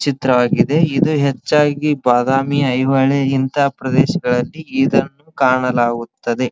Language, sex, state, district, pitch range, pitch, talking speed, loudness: Kannada, male, Karnataka, Dharwad, 125-145 Hz, 135 Hz, 85 wpm, -16 LUFS